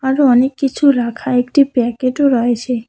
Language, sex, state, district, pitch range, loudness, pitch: Bengali, female, West Bengal, Cooch Behar, 245-275 Hz, -14 LUFS, 255 Hz